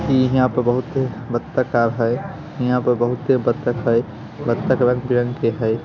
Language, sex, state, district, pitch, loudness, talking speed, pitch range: Hindi, male, Bihar, Samastipur, 125 Hz, -20 LUFS, 155 wpm, 120-130 Hz